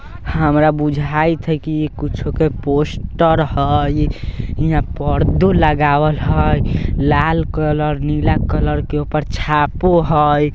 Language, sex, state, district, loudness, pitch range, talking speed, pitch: Bajjika, male, Bihar, Vaishali, -16 LUFS, 145-155 Hz, 120 wpm, 150 Hz